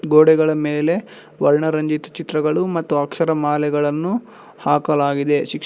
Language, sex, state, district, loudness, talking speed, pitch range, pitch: Kannada, male, Karnataka, Bangalore, -18 LUFS, 95 wpm, 150-165 Hz, 155 Hz